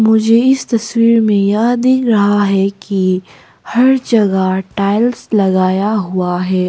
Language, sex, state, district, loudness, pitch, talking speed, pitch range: Hindi, female, Arunachal Pradesh, Papum Pare, -13 LUFS, 205 Hz, 135 wpm, 190-230 Hz